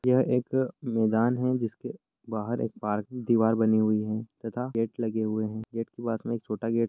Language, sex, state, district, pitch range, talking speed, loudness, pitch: Hindi, male, Chhattisgarh, Raigarh, 110-120 Hz, 215 wpm, -28 LUFS, 115 Hz